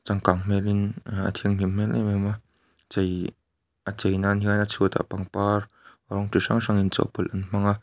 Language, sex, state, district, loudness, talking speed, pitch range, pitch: Mizo, male, Mizoram, Aizawl, -25 LUFS, 200 wpm, 95-105 Hz, 100 Hz